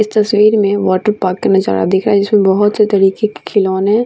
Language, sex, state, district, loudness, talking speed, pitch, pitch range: Hindi, female, Bihar, Vaishali, -12 LUFS, 235 wpm, 205 Hz, 190-215 Hz